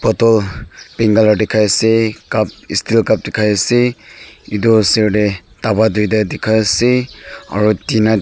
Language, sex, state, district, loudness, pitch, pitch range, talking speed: Nagamese, male, Nagaland, Dimapur, -14 LUFS, 110 Hz, 105-115 Hz, 140 wpm